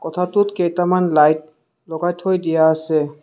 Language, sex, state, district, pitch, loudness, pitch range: Assamese, male, Assam, Kamrup Metropolitan, 165 Hz, -17 LUFS, 155-180 Hz